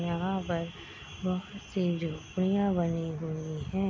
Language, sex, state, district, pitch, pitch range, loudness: Hindi, female, Bihar, Gopalganj, 175 Hz, 165-190 Hz, -32 LUFS